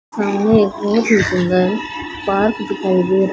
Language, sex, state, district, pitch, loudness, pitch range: Hindi, female, Haryana, Rohtak, 205 Hz, -16 LUFS, 190-220 Hz